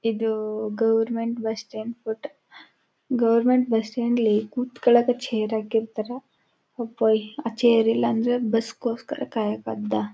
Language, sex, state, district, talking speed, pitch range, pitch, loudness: Kannada, female, Karnataka, Chamarajanagar, 100 wpm, 220-240 Hz, 225 Hz, -24 LUFS